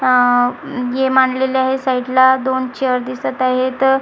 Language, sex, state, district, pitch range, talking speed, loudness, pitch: Marathi, female, Maharashtra, Gondia, 255-260 Hz, 135 wpm, -16 LUFS, 260 Hz